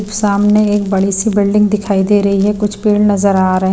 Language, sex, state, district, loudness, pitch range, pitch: Hindi, female, Himachal Pradesh, Shimla, -13 LUFS, 195-210 Hz, 205 Hz